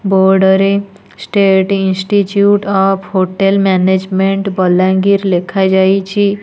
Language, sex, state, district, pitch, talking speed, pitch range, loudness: Odia, female, Odisha, Nuapada, 195 Hz, 95 wpm, 190-200 Hz, -12 LUFS